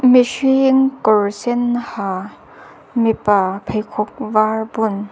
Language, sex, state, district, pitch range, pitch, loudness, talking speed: Mizo, female, Mizoram, Aizawl, 205-245 Hz, 220 Hz, -17 LUFS, 95 wpm